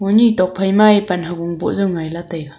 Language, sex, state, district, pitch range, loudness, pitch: Wancho, female, Arunachal Pradesh, Longding, 170-200 Hz, -16 LUFS, 180 Hz